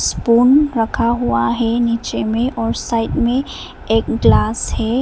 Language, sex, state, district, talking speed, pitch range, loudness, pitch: Hindi, female, Arunachal Pradesh, Papum Pare, 145 wpm, 225-240 Hz, -16 LUFS, 230 Hz